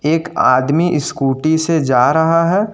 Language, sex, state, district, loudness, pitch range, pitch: Hindi, male, Jharkhand, Ranchi, -14 LUFS, 140-165 Hz, 160 Hz